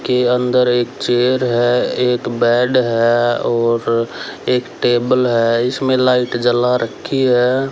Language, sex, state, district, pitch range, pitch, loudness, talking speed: Hindi, male, Haryana, Rohtak, 120-125 Hz, 125 Hz, -15 LUFS, 130 wpm